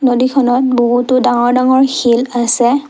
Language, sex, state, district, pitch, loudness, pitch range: Assamese, female, Assam, Kamrup Metropolitan, 250 Hz, -12 LUFS, 240-260 Hz